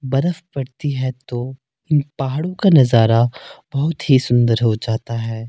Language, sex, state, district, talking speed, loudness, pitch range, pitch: Hindi, male, Himachal Pradesh, Shimla, 155 wpm, -18 LUFS, 120-145 Hz, 130 Hz